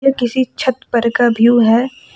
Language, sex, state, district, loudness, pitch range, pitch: Hindi, female, Jharkhand, Deoghar, -14 LUFS, 235-260 Hz, 240 Hz